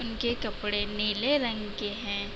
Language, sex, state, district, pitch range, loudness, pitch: Hindi, female, Uttar Pradesh, Budaun, 205-235 Hz, -29 LUFS, 210 Hz